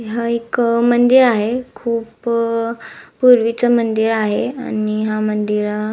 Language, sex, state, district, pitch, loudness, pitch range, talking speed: Marathi, female, Maharashtra, Nagpur, 230 Hz, -16 LUFS, 215-235 Hz, 120 wpm